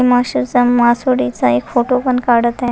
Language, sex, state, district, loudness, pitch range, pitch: Marathi, female, Maharashtra, Nagpur, -14 LUFS, 235-250 Hz, 245 Hz